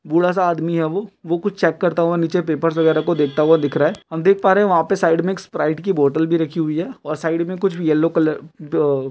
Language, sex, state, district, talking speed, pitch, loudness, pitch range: Hindi, male, West Bengal, Kolkata, 290 wpm, 165 Hz, -18 LUFS, 155-180 Hz